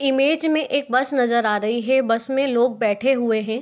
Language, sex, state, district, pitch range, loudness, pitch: Hindi, female, Bihar, Begusarai, 230-270 Hz, -20 LUFS, 255 Hz